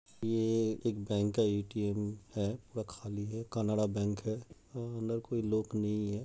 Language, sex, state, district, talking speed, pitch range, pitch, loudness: Hindi, male, Uttar Pradesh, Jalaun, 165 wpm, 105-115 Hz, 110 Hz, -35 LUFS